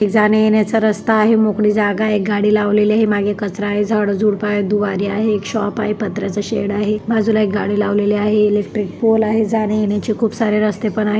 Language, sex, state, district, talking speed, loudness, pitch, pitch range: Marathi, female, Maharashtra, Chandrapur, 210 wpm, -16 LUFS, 210 Hz, 205-215 Hz